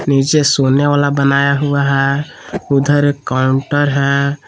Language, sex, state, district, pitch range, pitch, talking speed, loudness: Hindi, male, Jharkhand, Palamu, 140-145 Hz, 140 Hz, 135 wpm, -14 LUFS